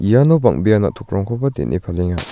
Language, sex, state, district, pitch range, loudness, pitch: Garo, male, Meghalaya, North Garo Hills, 95-130 Hz, -17 LUFS, 105 Hz